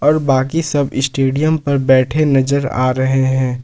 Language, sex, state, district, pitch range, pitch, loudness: Hindi, male, Jharkhand, Ranchi, 130-145 Hz, 135 Hz, -15 LUFS